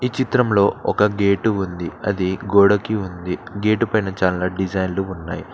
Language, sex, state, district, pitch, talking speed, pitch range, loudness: Telugu, male, Telangana, Mahabubabad, 100 Hz, 140 wpm, 95-105 Hz, -20 LUFS